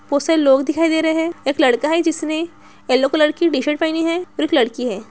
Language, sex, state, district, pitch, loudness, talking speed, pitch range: Hindi, female, Bihar, Araria, 310 Hz, -17 LUFS, 245 wpm, 275-325 Hz